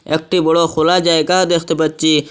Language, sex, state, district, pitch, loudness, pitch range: Bengali, male, Assam, Hailakandi, 160 Hz, -14 LUFS, 155-170 Hz